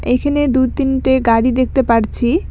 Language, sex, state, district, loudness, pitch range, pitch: Bengali, female, West Bengal, Alipurduar, -15 LUFS, 245-275 Hz, 260 Hz